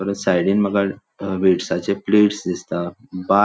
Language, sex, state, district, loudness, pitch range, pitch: Konkani, male, Goa, North and South Goa, -20 LUFS, 90-100 Hz, 100 Hz